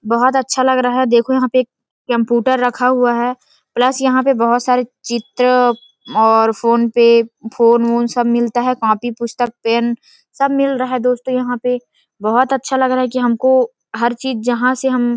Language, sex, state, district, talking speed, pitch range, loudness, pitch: Hindi, female, Chhattisgarh, Rajnandgaon, 190 wpm, 235-255 Hz, -15 LUFS, 245 Hz